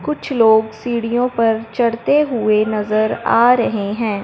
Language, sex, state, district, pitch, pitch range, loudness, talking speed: Hindi, male, Punjab, Fazilka, 230 Hz, 215-245 Hz, -16 LUFS, 140 wpm